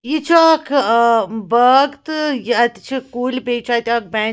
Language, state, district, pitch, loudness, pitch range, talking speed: Kashmiri, Punjab, Kapurthala, 245 Hz, -16 LUFS, 235-285 Hz, 180 wpm